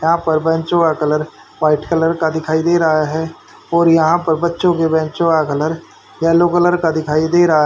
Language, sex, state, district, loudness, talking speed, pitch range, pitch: Hindi, male, Haryana, Charkhi Dadri, -15 LUFS, 210 wpm, 155-170 Hz, 160 Hz